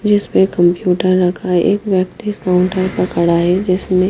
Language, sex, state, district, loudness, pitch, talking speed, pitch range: Hindi, female, Himachal Pradesh, Shimla, -15 LUFS, 185 Hz, 175 wpm, 180-195 Hz